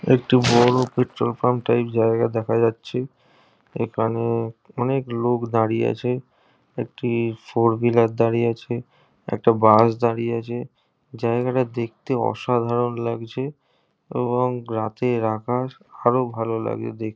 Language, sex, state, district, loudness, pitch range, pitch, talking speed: Bengali, male, West Bengal, Kolkata, -22 LUFS, 115-125 Hz, 120 Hz, 115 wpm